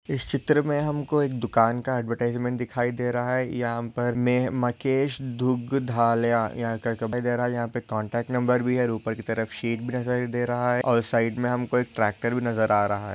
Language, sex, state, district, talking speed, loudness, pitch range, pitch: Hindi, male, Maharashtra, Solapur, 215 wpm, -25 LUFS, 115-125 Hz, 120 Hz